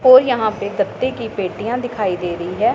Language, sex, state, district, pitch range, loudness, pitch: Hindi, female, Punjab, Pathankot, 190-250 Hz, -19 LUFS, 220 Hz